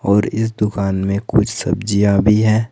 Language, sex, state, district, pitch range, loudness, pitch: Hindi, male, Uttar Pradesh, Saharanpur, 100-110 Hz, -16 LUFS, 105 Hz